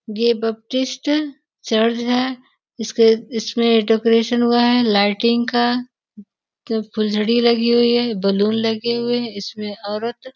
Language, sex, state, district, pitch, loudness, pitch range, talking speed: Hindi, female, Uttar Pradesh, Gorakhpur, 235 Hz, -18 LUFS, 220-240 Hz, 120 wpm